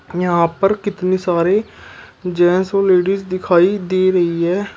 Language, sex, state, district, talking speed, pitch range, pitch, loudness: Hindi, male, Uttar Pradesh, Shamli, 140 wpm, 175-195 Hz, 185 Hz, -16 LUFS